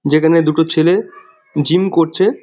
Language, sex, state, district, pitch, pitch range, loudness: Bengali, male, West Bengal, Jhargram, 165 Hz, 160-195 Hz, -14 LUFS